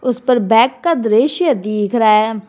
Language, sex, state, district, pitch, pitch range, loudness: Hindi, female, Jharkhand, Garhwa, 235 Hz, 215-255 Hz, -14 LUFS